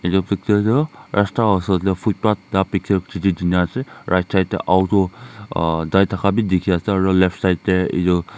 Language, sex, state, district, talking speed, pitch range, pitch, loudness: Nagamese, male, Nagaland, Kohima, 170 wpm, 90-100 Hz, 95 Hz, -19 LUFS